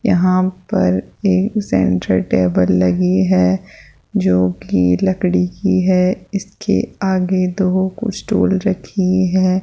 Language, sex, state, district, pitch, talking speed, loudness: Hindi, female, Rajasthan, Jaipur, 185 Hz, 105 wpm, -16 LUFS